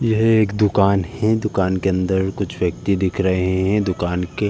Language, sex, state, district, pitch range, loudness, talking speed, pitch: Hindi, male, Uttar Pradesh, Jalaun, 95-105 Hz, -19 LUFS, 200 wpm, 95 Hz